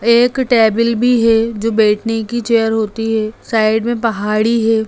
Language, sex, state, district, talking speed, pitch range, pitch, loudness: Hindi, female, Bihar, Jamui, 170 wpm, 220-235 Hz, 225 Hz, -14 LUFS